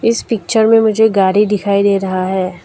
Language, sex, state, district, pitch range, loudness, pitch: Hindi, female, Arunachal Pradesh, Lower Dibang Valley, 190-220 Hz, -13 LUFS, 200 Hz